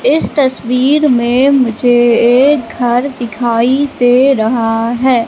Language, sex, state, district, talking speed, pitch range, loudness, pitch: Hindi, female, Madhya Pradesh, Katni, 115 wpm, 235-265 Hz, -11 LUFS, 245 Hz